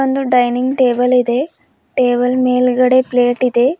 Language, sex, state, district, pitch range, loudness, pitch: Kannada, female, Karnataka, Bidar, 245-255 Hz, -14 LUFS, 250 Hz